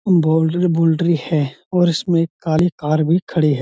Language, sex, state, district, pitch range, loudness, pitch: Hindi, female, Uttar Pradesh, Budaun, 155-175 Hz, -17 LUFS, 165 Hz